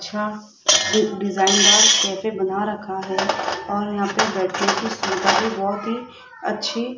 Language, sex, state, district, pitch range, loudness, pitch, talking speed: Hindi, female, Rajasthan, Jaipur, 195-215 Hz, -19 LUFS, 205 Hz, 165 wpm